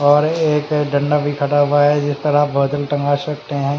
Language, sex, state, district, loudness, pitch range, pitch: Hindi, male, Haryana, Charkhi Dadri, -17 LUFS, 145-150 Hz, 145 Hz